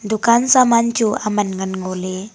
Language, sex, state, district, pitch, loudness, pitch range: Wancho, female, Arunachal Pradesh, Longding, 215 Hz, -16 LUFS, 190-235 Hz